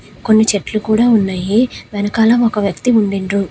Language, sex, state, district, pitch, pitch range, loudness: Telugu, female, Telangana, Hyderabad, 215 Hz, 200-225 Hz, -14 LUFS